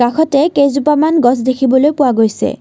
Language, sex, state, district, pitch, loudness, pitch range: Assamese, female, Assam, Kamrup Metropolitan, 275 Hz, -12 LUFS, 250-300 Hz